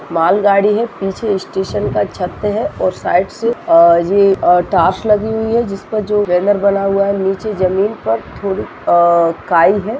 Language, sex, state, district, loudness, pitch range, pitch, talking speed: Hindi, female, Chhattisgarh, Raigarh, -14 LUFS, 185-215 Hz, 200 Hz, 170 wpm